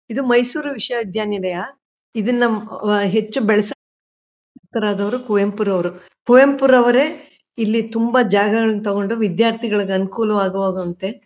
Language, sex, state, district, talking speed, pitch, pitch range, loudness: Kannada, female, Karnataka, Mysore, 90 wpm, 220 Hz, 200-245 Hz, -18 LUFS